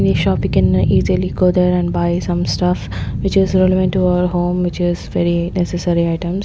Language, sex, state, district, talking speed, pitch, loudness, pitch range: English, female, Chandigarh, Chandigarh, 195 wpm, 175 Hz, -16 LUFS, 165-180 Hz